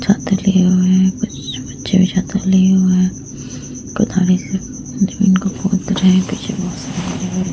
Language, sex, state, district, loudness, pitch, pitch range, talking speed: Hindi, female, Uttar Pradesh, Muzaffarnagar, -16 LUFS, 190 Hz, 185-195 Hz, 175 wpm